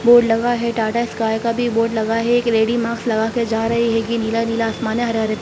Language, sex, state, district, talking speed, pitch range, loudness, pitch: Hindi, female, Bihar, Sitamarhi, 245 wpm, 225-235 Hz, -18 LUFS, 230 Hz